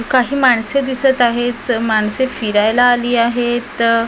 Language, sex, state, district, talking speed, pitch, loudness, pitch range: Marathi, female, Maharashtra, Mumbai Suburban, 120 wpm, 240 Hz, -15 LUFS, 230-255 Hz